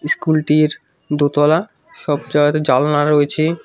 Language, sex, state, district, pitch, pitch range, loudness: Bengali, male, West Bengal, Cooch Behar, 150 Hz, 145-155 Hz, -16 LUFS